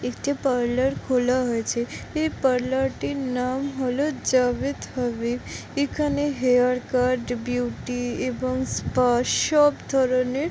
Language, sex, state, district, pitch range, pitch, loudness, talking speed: Bengali, female, West Bengal, Jalpaiguri, 245-275 Hz, 255 Hz, -24 LUFS, 115 wpm